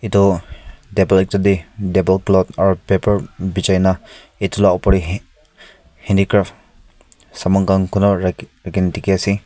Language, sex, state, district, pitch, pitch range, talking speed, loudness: Nagamese, male, Nagaland, Kohima, 95 Hz, 95-100 Hz, 135 wpm, -17 LUFS